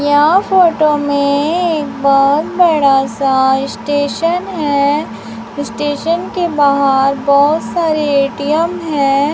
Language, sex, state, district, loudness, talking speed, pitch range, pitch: Hindi, female, Chhattisgarh, Raipur, -13 LUFS, 105 wpm, 275-315 Hz, 285 Hz